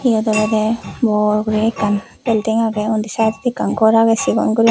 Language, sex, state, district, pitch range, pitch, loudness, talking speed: Chakma, female, Tripura, West Tripura, 215-225 Hz, 220 Hz, -16 LUFS, 190 wpm